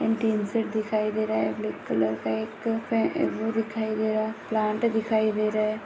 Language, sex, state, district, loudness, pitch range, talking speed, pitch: Hindi, female, Maharashtra, Aurangabad, -26 LUFS, 215-220 Hz, 195 wpm, 215 Hz